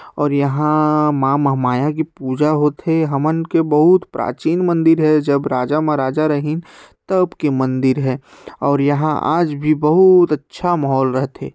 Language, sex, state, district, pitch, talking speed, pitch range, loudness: Chhattisgarhi, male, Chhattisgarh, Sarguja, 150 Hz, 150 wpm, 140-160 Hz, -16 LUFS